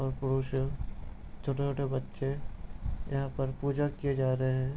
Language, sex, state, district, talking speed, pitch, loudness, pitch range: Hindi, male, Bihar, Gopalganj, 165 wpm, 135 Hz, -33 LUFS, 130-140 Hz